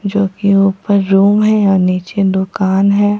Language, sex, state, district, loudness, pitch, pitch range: Hindi, female, Bihar, Katihar, -13 LUFS, 195 Hz, 190-205 Hz